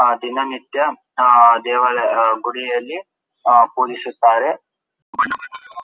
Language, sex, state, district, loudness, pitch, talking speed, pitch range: Kannada, male, Karnataka, Dharwad, -16 LUFS, 125 Hz, 70 wpm, 120-135 Hz